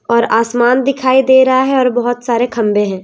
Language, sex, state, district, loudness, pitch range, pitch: Hindi, female, Madhya Pradesh, Umaria, -12 LUFS, 235-260 Hz, 245 Hz